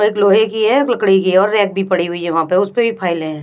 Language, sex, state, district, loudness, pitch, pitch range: Hindi, female, Bihar, Patna, -14 LUFS, 195 Hz, 180-215 Hz